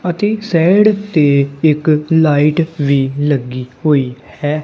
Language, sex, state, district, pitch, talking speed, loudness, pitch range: Punjabi, male, Punjab, Kapurthala, 150 Hz, 115 wpm, -13 LUFS, 140-165 Hz